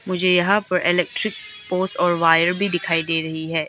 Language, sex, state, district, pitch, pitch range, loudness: Hindi, female, Arunachal Pradesh, Lower Dibang Valley, 180 Hz, 165-185 Hz, -19 LUFS